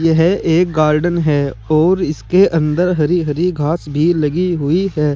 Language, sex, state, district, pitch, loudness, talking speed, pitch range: Hindi, male, Uttar Pradesh, Saharanpur, 160 Hz, -15 LUFS, 165 wpm, 150-175 Hz